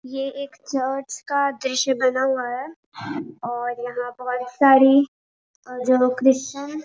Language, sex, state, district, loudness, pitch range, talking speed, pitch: Hindi, female, Chhattisgarh, Raigarh, -21 LUFS, 250-280 Hz, 130 wpm, 265 Hz